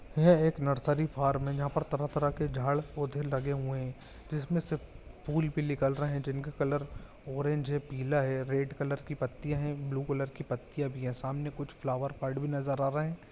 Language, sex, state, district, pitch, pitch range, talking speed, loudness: Hindi, male, Chhattisgarh, Bilaspur, 140 Hz, 135-150 Hz, 200 wpm, -33 LUFS